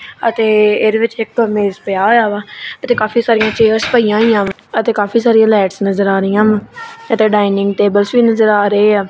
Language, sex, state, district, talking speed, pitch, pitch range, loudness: Punjabi, female, Punjab, Kapurthala, 205 wpm, 215 Hz, 205-225 Hz, -13 LUFS